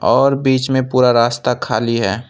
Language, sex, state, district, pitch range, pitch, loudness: Hindi, male, West Bengal, Alipurduar, 115-130 Hz, 125 Hz, -15 LUFS